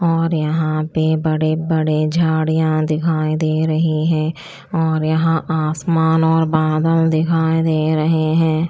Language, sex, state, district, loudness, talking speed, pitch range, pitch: Hindi, female, Chandigarh, Chandigarh, -17 LUFS, 130 wpm, 155-160 Hz, 160 Hz